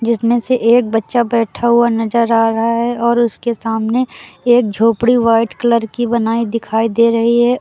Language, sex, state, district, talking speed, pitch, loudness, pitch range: Hindi, female, Uttar Pradesh, Lucknow, 180 wpm, 235 Hz, -14 LUFS, 230-240 Hz